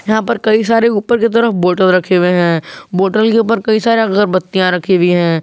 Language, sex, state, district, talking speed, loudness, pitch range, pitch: Hindi, male, Jharkhand, Garhwa, 220 wpm, -12 LUFS, 180-225 Hz, 195 Hz